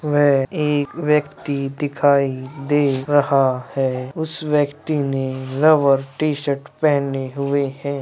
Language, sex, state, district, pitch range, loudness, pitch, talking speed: Hindi, male, Bihar, Lakhisarai, 135-150 Hz, -19 LUFS, 140 Hz, 125 wpm